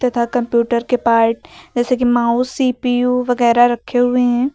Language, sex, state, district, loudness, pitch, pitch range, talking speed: Hindi, female, Uttar Pradesh, Lucknow, -16 LUFS, 245 Hz, 235-250 Hz, 160 wpm